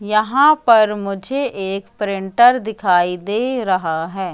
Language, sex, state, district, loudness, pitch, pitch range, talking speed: Hindi, female, Madhya Pradesh, Katni, -17 LUFS, 205 Hz, 190-240 Hz, 125 wpm